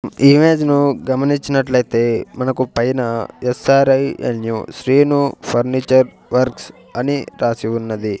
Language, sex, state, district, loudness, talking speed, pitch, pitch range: Telugu, male, Andhra Pradesh, Sri Satya Sai, -16 LUFS, 115 wpm, 130 Hz, 120-140 Hz